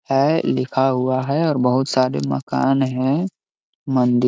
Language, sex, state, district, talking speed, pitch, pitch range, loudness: Hindi, male, Bihar, Gaya, 155 wpm, 130 Hz, 125-140 Hz, -19 LUFS